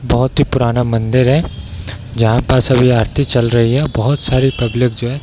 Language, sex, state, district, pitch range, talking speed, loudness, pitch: Hindi, male, Bihar, East Champaran, 115-130 Hz, 220 wpm, -14 LUFS, 125 Hz